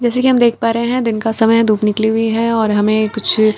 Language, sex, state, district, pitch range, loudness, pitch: Hindi, female, Bihar, Katihar, 215-230 Hz, -14 LUFS, 225 Hz